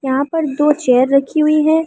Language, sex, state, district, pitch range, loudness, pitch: Hindi, female, Delhi, New Delhi, 275-310 Hz, -14 LUFS, 295 Hz